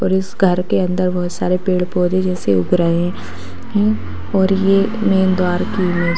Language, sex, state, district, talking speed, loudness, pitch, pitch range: Hindi, female, Bihar, Saharsa, 175 wpm, -17 LUFS, 180 Hz, 175-190 Hz